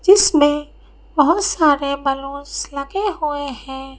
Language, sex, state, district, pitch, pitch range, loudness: Hindi, female, Madhya Pradesh, Bhopal, 290 Hz, 280-330 Hz, -18 LUFS